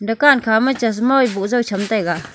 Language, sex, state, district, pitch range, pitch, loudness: Wancho, female, Arunachal Pradesh, Longding, 205-260 Hz, 225 Hz, -16 LUFS